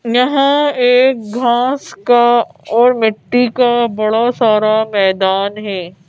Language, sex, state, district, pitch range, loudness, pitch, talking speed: Hindi, female, Madhya Pradesh, Bhopal, 215-245 Hz, -13 LUFS, 235 Hz, 110 wpm